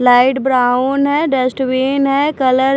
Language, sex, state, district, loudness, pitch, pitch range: Hindi, female, Maharashtra, Washim, -14 LUFS, 265 Hz, 255-275 Hz